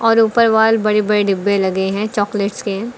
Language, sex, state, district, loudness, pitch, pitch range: Hindi, female, Uttar Pradesh, Lucknow, -15 LUFS, 210 Hz, 200-225 Hz